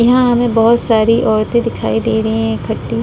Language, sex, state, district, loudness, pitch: Hindi, female, Uttar Pradesh, Budaun, -14 LUFS, 220 Hz